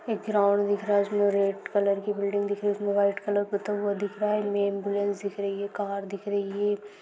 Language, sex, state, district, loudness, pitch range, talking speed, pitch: Hindi, female, Maharashtra, Chandrapur, -27 LUFS, 200-205 Hz, 230 wpm, 205 Hz